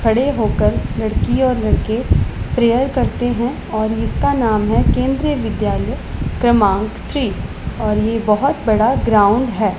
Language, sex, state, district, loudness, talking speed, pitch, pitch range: Hindi, female, Punjab, Pathankot, -17 LUFS, 135 wpm, 225 Hz, 215-255 Hz